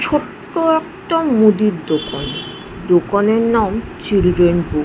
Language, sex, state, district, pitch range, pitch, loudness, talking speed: Bengali, female, West Bengal, Jhargram, 175-285 Hz, 210 Hz, -16 LUFS, 100 wpm